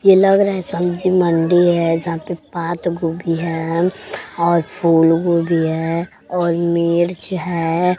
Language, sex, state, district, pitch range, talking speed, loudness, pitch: Bhojpuri, female, Uttar Pradesh, Deoria, 165-175 Hz, 150 wpm, -17 LUFS, 170 Hz